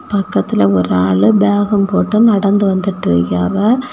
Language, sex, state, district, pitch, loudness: Tamil, female, Tamil Nadu, Kanyakumari, 200 Hz, -13 LUFS